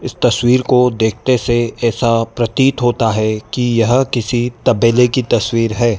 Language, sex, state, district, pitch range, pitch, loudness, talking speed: Hindi, male, Madhya Pradesh, Dhar, 115-125 Hz, 120 Hz, -14 LUFS, 160 wpm